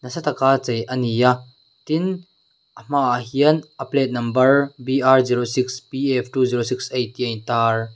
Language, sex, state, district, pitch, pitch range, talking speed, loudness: Mizo, male, Mizoram, Aizawl, 130 Hz, 125-140 Hz, 195 wpm, -20 LUFS